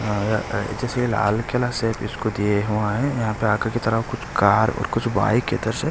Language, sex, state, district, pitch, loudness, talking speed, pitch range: Hindi, male, Delhi, New Delhi, 110 Hz, -22 LUFS, 185 wpm, 105-115 Hz